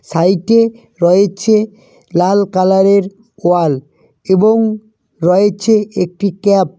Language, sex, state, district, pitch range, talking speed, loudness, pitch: Bengali, male, West Bengal, Cooch Behar, 180-215 Hz, 90 wpm, -13 LUFS, 200 Hz